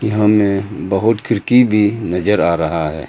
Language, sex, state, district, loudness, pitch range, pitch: Hindi, male, Arunachal Pradesh, Lower Dibang Valley, -15 LUFS, 90-110 Hz, 105 Hz